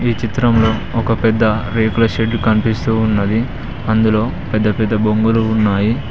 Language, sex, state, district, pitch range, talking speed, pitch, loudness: Telugu, male, Telangana, Mahabubabad, 110-115 Hz, 130 wpm, 110 Hz, -15 LUFS